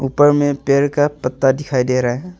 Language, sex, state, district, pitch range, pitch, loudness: Hindi, male, Arunachal Pradesh, Longding, 135-145 Hz, 140 Hz, -16 LUFS